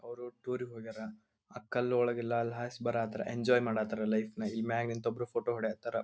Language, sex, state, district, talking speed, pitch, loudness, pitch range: Kannada, male, Karnataka, Belgaum, 190 wpm, 115 Hz, -35 LUFS, 110-120 Hz